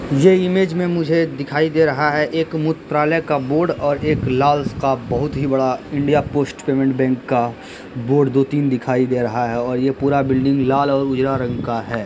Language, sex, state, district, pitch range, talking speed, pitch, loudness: Hindi, male, Bihar, Begusarai, 130-150 Hz, 205 wpm, 140 Hz, -18 LUFS